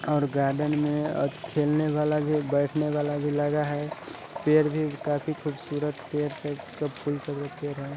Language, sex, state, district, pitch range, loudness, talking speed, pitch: Hindi, male, Bihar, Sitamarhi, 145-150 Hz, -27 LUFS, 160 wpm, 150 Hz